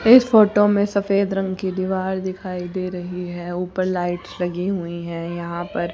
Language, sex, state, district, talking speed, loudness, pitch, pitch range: Hindi, female, Haryana, Charkhi Dadri, 180 wpm, -21 LUFS, 185 Hz, 175-195 Hz